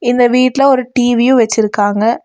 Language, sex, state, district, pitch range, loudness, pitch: Tamil, female, Tamil Nadu, Nilgiris, 225-255 Hz, -12 LUFS, 245 Hz